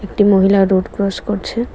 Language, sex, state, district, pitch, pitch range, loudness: Bengali, female, Tripura, West Tripura, 200 Hz, 195-205 Hz, -15 LUFS